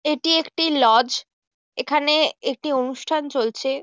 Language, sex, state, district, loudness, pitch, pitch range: Bengali, female, West Bengal, Jhargram, -20 LUFS, 285 Hz, 260-310 Hz